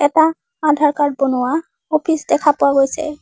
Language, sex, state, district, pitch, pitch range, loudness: Assamese, female, Assam, Sonitpur, 300 Hz, 285-315 Hz, -16 LUFS